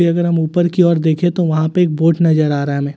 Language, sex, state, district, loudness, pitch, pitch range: Hindi, male, Delhi, New Delhi, -15 LUFS, 165 Hz, 155-175 Hz